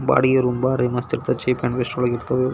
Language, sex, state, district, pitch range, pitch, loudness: Kannada, male, Karnataka, Belgaum, 125-130 Hz, 125 Hz, -21 LUFS